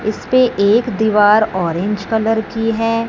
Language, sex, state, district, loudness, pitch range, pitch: Hindi, female, Punjab, Fazilka, -15 LUFS, 210-225 Hz, 220 Hz